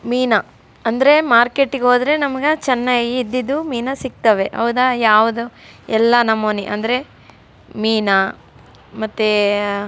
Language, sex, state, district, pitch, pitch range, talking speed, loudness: Kannada, female, Karnataka, Raichur, 235 Hz, 215-255 Hz, 110 wpm, -16 LUFS